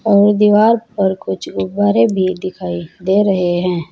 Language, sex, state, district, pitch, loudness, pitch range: Hindi, female, Uttar Pradesh, Saharanpur, 185 Hz, -15 LUFS, 175-205 Hz